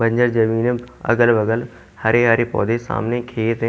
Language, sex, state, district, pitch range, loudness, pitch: Hindi, male, Haryana, Jhajjar, 115-120 Hz, -18 LUFS, 115 Hz